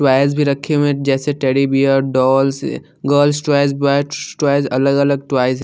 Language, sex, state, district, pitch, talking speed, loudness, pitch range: Hindi, male, Haryana, Jhajjar, 140 Hz, 160 wpm, -16 LUFS, 135-145 Hz